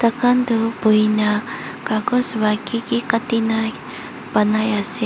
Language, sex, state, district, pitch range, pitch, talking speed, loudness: Nagamese, female, Mizoram, Aizawl, 215-235 Hz, 225 Hz, 105 wpm, -19 LUFS